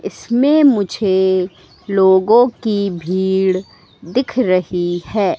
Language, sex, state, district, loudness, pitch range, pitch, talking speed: Hindi, female, Madhya Pradesh, Katni, -15 LUFS, 185-230 Hz, 190 Hz, 90 wpm